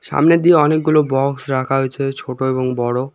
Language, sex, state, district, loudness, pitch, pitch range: Bengali, male, West Bengal, Alipurduar, -16 LUFS, 135 Hz, 130-150 Hz